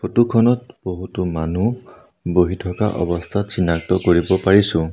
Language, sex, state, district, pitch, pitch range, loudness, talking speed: Assamese, male, Assam, Sonitpur, 95 Hz, 85-105 Hz, -19 LUFS, 120 wpm